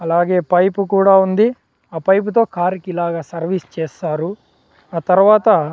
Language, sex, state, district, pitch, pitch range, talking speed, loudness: Telugu, male, Andhra Pradesh, Sri Satya Sai, 180 Hz, 170-195 Hz, 155 wpm, -16 LUFS